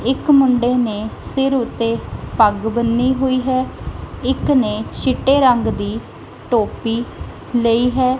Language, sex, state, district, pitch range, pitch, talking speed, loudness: Punjabi, female, Punjab, Kapurthala, 230-260 Hz, 245 Hz, 125 wpm, -17 LUFS